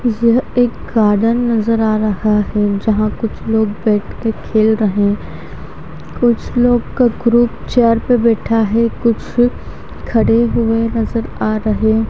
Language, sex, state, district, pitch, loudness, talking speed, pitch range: Hindi, female, Haryana, Charkhi Dadri, 225 Hz, -15 LUFS, 145 wpm, 215-235 Hz